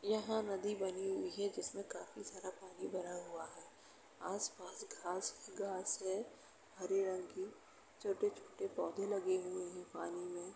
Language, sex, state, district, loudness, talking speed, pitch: Hindi, female, Uttar Pradesh, Jalaun, -43 LUFS, 155 wpm, 200 Hz